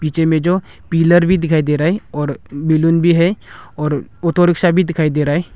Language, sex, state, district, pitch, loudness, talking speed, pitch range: Hindi, male, Arunachal Pradesh, Longding, 165 Hz, -15 LUFS, 225 wpm, 150-175 Hz